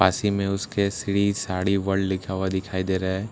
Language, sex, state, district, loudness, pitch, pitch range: Hindi, male, Bihar, Katihar, -25 LUFS, 95 Hz, 95-100 Hz